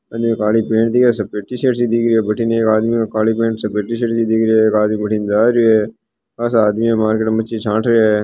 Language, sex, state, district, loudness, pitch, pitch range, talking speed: Hindi, male, Rajasthan, Nagaur, -16 LUFS, 110 Hz, 110-115 Hz, 205 wpm